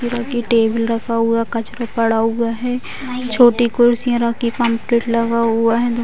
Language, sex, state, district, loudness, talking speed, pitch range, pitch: Hindi, female, Bihar, Vaishali, -17 LUFS, 160 wpm, 230-240 Hz, 235 Hz